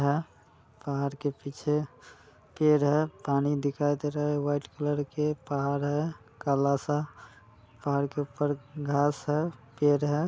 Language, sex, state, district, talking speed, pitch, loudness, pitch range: Hindi, male, Bihar, Muzaffarpur, 145 wpm, 145 Hz, -29 LUFS, 140-150 Hz